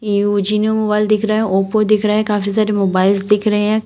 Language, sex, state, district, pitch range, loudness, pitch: Hindi, female, Uttar Pradesh, Shamli, 205-215 Hz, -15 LUFS, 210 Hz